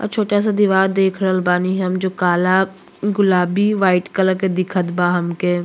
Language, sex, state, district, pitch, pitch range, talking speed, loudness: Bhojpuri, female, Uttar Pradesh, Deoria, 190 Hz, 180-195 Hz, 180 wpm, -17 LUFS